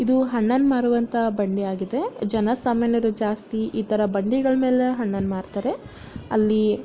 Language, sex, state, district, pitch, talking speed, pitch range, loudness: Kannada, female, Karnataka, Bellary, 225 Hz, 115 wpm, 210-255 Hz, -22 LUFS